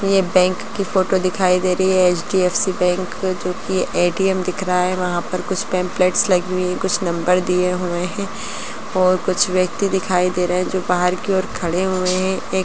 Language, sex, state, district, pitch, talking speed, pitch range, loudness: Hindi, female, Bihar, Gaya, 185 Hz, 215 wpm, 180-190 Hz, -19 LUFS